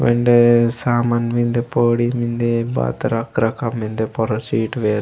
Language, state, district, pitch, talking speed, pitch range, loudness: Gondi, Chhattisgarh, Sukma, 120 Hz, 155 wpm, 110-120 Hz, -18 LUFS